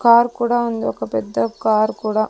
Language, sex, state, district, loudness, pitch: Telugu, female, Andhra Pradesh, Sri Satya Sai, -19 LUFS, 215 Hz